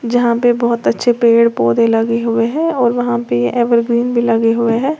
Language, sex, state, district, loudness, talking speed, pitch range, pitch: Hindi, female, Uttar Pradesh, Lalitpur, -14 LUFS, 205 wpm, 230-240 Hz, 235 Hz